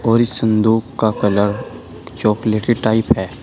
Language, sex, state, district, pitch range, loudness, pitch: Hindi, male, Uttar Pradesh, Shamli, 105-115 Hz, -17 LUFS, 110 Hz